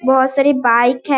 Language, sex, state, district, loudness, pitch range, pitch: Hindi, female, Bihar, Darbhanga, -14 LUFS, 245-275 Hz, 265 Hz